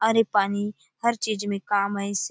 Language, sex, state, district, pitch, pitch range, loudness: Halbi, female, Chhattisgarh, Bastar, 205 Hz, 200-220 Hz, -25 LUFS